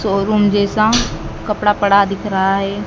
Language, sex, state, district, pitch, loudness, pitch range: Hindi, female, Madhya Pradesh, Dhar, 205 Hz, -15 LUFS, 195-210 Hz